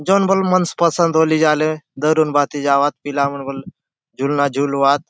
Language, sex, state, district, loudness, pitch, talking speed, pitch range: Halbi, male, Chhattisgarh, Bastar, -17 LUFS, 145 Hz, 175 wpm, 140-160 Hz